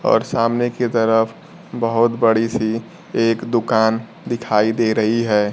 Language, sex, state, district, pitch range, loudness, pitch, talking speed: Hindi, male, Bihar, Kaimur, 110-115 Hz, -18 LUFS, 115 Hz, 140 wpm